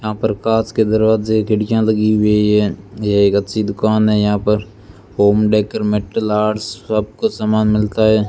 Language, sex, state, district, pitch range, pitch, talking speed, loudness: Hindi, male, Rajasthan, Bikaner, 105-110 Hz, 105 Hz, 180 wpm, -16 LUFS